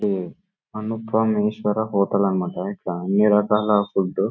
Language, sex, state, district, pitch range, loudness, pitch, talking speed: Telugu, male, Karnataka, Bellary, 100-110 Hz, -21 LUFS, 105 Hz, 110 wpm